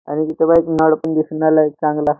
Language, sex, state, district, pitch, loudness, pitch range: Marathi, male, Maharashtra, Nagpur, 155 Hz, -16 LUFS, 150-160 Hz